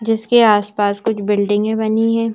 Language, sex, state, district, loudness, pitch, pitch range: Hindi, female, Madhya Pradesh, Bhopal, -16 LUFS, 220 Hz, 205-225 Hz